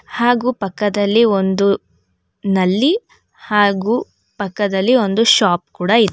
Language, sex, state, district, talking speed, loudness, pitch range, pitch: Kannada, female, Karnataka, Bangalore, 100 wpm, -16 LUFS, 190-230 Hz, 205 Hz